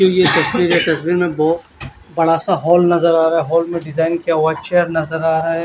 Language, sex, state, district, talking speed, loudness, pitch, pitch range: Hindi, male, Odisha, Khordha, 255 wpm, -15 LUFS, 165 Hz, 160-175 Hz